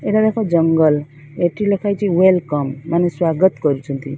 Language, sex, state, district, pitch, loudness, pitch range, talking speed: Odia, female, Odisha, Sambalpur, 170 Hz, -17 LUFS, 150-190 Hz, 160 wpm